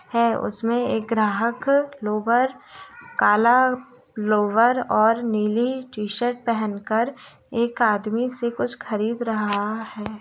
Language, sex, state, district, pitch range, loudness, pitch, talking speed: Hindi, female, Bihar, Gopalganj, 215-245 Hz, -22 LUFS, 230 Hz, 110 wpm